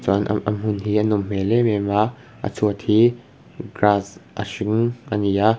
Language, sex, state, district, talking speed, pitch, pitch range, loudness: Mizo, male, Mizoram, Aizawl, 215 wpm, 105 Hz, 100-115 Hz, -21 LUFS